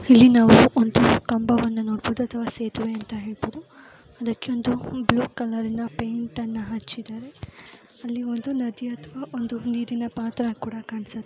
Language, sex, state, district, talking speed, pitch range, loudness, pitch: Kannada, female, Karnataka, Gulbarga, 130 wpm, 225-245 Hz, -23 LUFS, 235 Hz